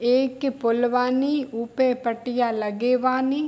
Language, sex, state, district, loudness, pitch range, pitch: Hindi, female, Bihar, Darbhanga, -23 LUFS, 235-260 Hz, 250 Hz